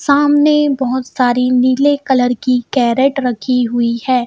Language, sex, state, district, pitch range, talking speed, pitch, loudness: Hindi, female, Madhya Pradesh, Bhopal, 245-275 Hz, 140 wpm, 255 Hz, -14 LUFS